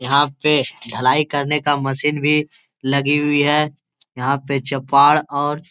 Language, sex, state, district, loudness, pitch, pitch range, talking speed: Hindi, male, Bihar, Gaya, -18 LUFS, 145 Hz, 140-150 Hz, 155 wpm